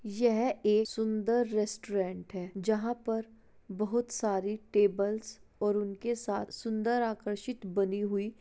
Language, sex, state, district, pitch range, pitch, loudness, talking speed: Hindi, female, Uttar Pradesh, Jalaun, 205-225 Hz, 215 Hz, -32 LUFS, 130 wpm